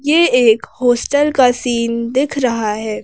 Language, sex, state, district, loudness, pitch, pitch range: Hindi, female, Madhya Pradesh, Bhopal, -15 LUFS, 245 Hz, 230-275 Hz